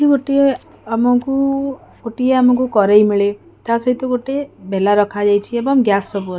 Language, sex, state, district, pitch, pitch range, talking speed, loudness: Odia, female, Odisha, Khordha, 245 Hz, 205-270 Hz, 130 wpm, -16 LUFS